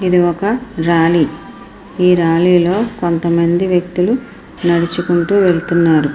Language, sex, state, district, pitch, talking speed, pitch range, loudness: Telugu, female, Andhra Pradesh, Srikakulam, 175 Hz, 105 wpm, 170-180 Hz, -14 LUFS